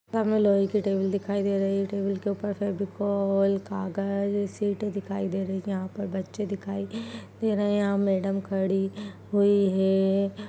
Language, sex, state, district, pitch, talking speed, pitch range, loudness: Hindi, female, Chhattisgarh, Rajnandgaon, 200 Hz, 170 wpm, 195-205 Hz, -27 LUFS